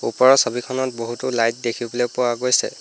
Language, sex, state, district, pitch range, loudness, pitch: Assamese, male, Assam, Hailakandi, 120-130 Hz, -20 LUFS, 125 Hz